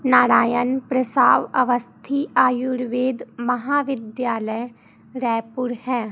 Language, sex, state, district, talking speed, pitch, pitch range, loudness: Hindi, female, Chhattisgarh, Raipur, 70 wpm, 250 Hz, 240-255 Hz, -21 LUFS